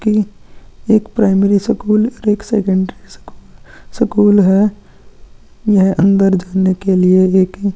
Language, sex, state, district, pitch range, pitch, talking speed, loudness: Hindi, male, Maharashtra, Aurangabad, 190-210 Hz, 200 Hz, 140 wpm, -13 LUFS